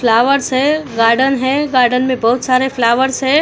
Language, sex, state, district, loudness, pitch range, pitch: Hindi, female, Maharashtra, Mumbai Suburban, -13 LUFS, 240-270 Hz, 260 Hz